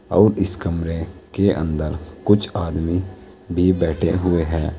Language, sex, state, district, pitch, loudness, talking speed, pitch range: Hindi, male, Uttar Pradesh, Saharanpur, 90 Hz, -20 LUFS, 140 wpm, 80-95 Hz